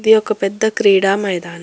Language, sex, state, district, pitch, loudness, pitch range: Telugu, female, Telangana, Hyderabad, 200 Hz, -15 LUFS, 195-220 Hz